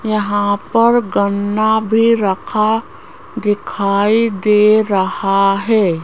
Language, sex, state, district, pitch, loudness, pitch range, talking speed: Hindi, female, Rajasthan, Jaipur, 210 Hz, -14 LUFS, 200-220 Hz, 90 wpm